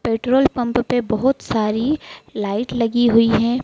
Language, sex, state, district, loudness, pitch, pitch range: Hindi, female, Madhya Pradesh, Dhar, -18 LUFS, 235 Hz, 225-245 Hz